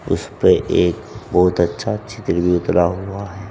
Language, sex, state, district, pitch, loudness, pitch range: Hindi, male, Uttar Pradesh, Saharanpur, 100 Hz, -18 LUFS, 90-105 Hz